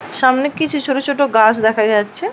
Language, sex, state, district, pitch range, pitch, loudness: Bengali, female, West Bengal, Paschim Medinipur, 220-285 Hz, 270 Hz, -15 LUFS